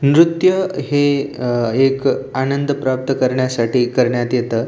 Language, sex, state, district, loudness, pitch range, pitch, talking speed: Marathi, male, Maharashtra, Aurangabad, -17 LUFS, 125-140 Hz, 130 Hz, 100 wpm